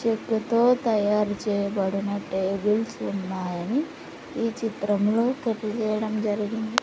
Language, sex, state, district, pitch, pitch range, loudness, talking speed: Telugu, female, Andhra Pradesh, Sri Satya Sai, 215 Hz, 200-225 Hz, -25 LUFS, 80 wpm